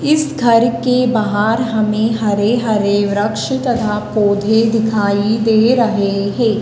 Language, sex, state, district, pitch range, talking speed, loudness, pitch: Hindi, female, Madhya Pradesh, Dhar, 210-235 Hz, 120 wpm, -15 LUFS, 220 Hz